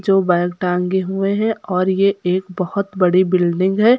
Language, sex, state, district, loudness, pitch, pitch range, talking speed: Hindi, female, Uttar Pradesh, Lucknow, -17 LUFS, 190 Hz, 180-195 Hz, 180 wpm